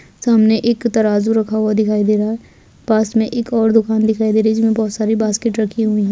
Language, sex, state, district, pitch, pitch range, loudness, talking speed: Hindi, female, Chhattisgarh, Bastar, 220 Hz, 215-225 Hz, -16 LUFS, 245 wpm